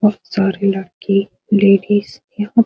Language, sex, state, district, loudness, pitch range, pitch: Hindi, female, Bihar, Supaul, -16 LUFS, 195-210 Hz, 200 Hz